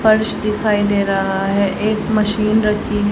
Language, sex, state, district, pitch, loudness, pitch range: Hindi, female, Haryana, Charkhi Dadri, 210 Hz, -17 LUFS, 200-215 Hz